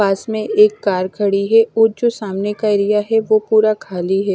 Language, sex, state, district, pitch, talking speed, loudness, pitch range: Hindi, female, Himachal Pradesh, Shimla, 210 Hz, 220 wpm, -16 LUFS, 200-225 Hz